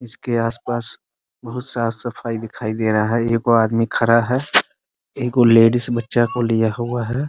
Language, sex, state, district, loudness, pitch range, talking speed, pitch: Hindi, male, Bihar, Muzaffarpur, -18 LUFS, 115-120 Hz, 190 wpm, 115 Hz